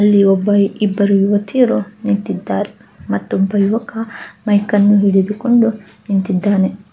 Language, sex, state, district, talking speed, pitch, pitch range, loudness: Kannada, female, Karnataka, Dakshina Kannada, 85 wpm, 205 Hz, 200-215 Hz, -15 LUFS